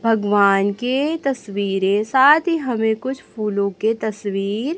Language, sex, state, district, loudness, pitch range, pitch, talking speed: Hindi, female, Chhattisgarh, Raipur, -19 LUFS, 200-265 Hz, 220 Hz, 125 wpm